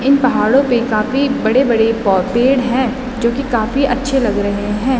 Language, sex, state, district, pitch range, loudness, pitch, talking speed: Hindi, female, Uttarakhand, Tehri Garhwal, 225-265 Hz, -15 LUFS, 250 Hz, 170 wpm